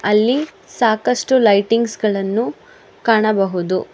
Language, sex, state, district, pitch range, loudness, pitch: Kannada, female, Karnataka, Bangalore, 205-245 Hz, -17 LUFS, 220 Hz